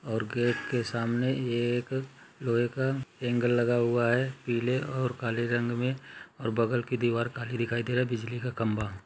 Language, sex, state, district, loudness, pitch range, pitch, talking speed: Hindi, male, Chhattisgarh, Bastar, -29 LUFS, 120-125 Hz, 120 Hz, 190 wpm